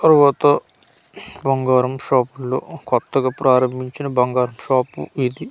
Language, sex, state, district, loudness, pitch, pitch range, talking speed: Telugu, male, Andhra Pradesh, Manyam, -19 LUFS, 130 Hz, 125-135 Hz, 100 wpm